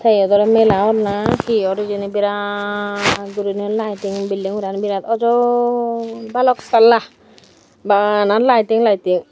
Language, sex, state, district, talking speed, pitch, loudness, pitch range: Chakma, female, Tripura, Dhalai, 135 wpm, 210 Hz, -16 LUFS, 200-230 Hz